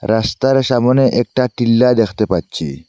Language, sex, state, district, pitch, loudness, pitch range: Bengali, male, Assam, Hailakandi, 115 Hz, -15 LUFS, 95-125 Hz